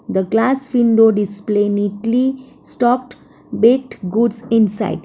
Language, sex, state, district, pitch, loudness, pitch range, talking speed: English, female, Gujarat, Valsad, 225 Hz, -16 LUFS, 205-245 Hz, 105 wpm